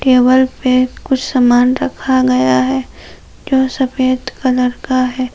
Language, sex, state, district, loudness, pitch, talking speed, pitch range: Hindi, female, Jharkhand, Palamu, -14 LUFS, 255 Hz, 135 wpm, 245-260 Hz